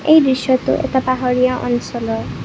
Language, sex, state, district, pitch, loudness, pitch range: Assamese, female, Assam, Kamrup Metropolitan, 255 Hz, -17 LUFS, 245-260 Hz